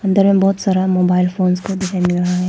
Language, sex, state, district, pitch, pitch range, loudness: Hindi, female, Arunachal Pradesh, Papum Pare, 185 Hz, 180-195 Hz, -16 LUFS